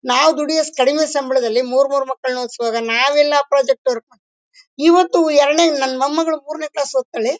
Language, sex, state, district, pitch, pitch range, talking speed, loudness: Kannada, female, Karnataka, Bellary, 280 Hz, 260-310 Hz, 155 wpm, -16 LUFS